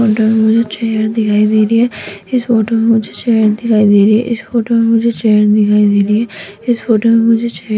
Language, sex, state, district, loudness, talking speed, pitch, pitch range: Hindi, female, Rajasthan, Jaipur, -12 LUFS, 255 wpm, 220 Hz, 210-230 Hz